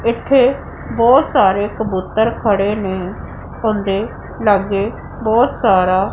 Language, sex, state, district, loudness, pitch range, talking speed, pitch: Punjabi, female, Punjab, Pathankot, -16 LUFS, 195-230 Hz, 110 wpm, 210 Hz